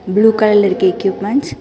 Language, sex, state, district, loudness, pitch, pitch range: Tamil, female, Karnataka, Bangalore, -14 LUFS, 205 Hz, 190-220 Hz